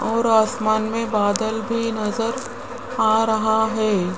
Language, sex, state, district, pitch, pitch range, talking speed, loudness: Hindi, female, Rajasthan, Jaipur, 220 Hz, 215-230 Hz, 130 wpm, -20 LUFS